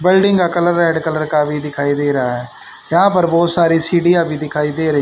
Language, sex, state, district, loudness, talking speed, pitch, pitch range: Hindi, male, Haryana, Charkhi Dadri, -15 LUFS, 240 wpm, 160 Hz, 150-175 Hz